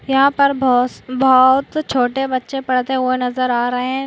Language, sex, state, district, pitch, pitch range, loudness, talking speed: Hindi, female, Maharashtra, Sindhudurg, 255 Hz, 250-270 Hz, -16 LUFS, 160 wpm